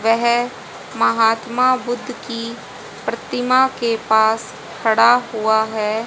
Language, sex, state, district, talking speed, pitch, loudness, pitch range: Hindi, female, Haryana, Jhajjar, 100 wpm, 230 Hz, -18 LUFS, 220-245 Hz